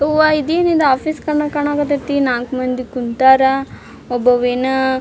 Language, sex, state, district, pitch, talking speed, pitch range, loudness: Kannada, female, Karnataka, Dharwad, 265 Hz, 110 wpm, 255-300 Hz, -16 LUFS